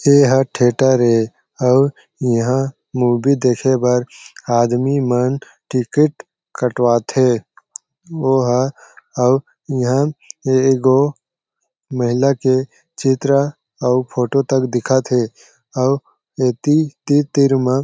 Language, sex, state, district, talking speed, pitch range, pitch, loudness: Chhattisgarhi, male, Chhattisgarh, Jashpur, 100 wpm, 125-140 Hz, 130 Hz, -17 LUFS